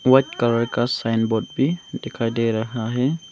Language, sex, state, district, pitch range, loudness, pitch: Hindi, male, Arunachal Pradesh, Longding, 115-130 Hz, -22 LUFS, 120 Hz